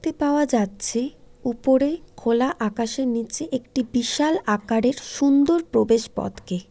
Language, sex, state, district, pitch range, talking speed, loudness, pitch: Bengali, female, West Bengal, Jalpaiguri, 230-280 Hz, 125 wpm, -22 LUFS, 250 Hz